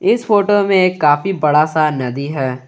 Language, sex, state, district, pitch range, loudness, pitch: Hindi, male, Jharkhand, Garhwa, 145-200 Hz, -14 LUFS, 155 Hz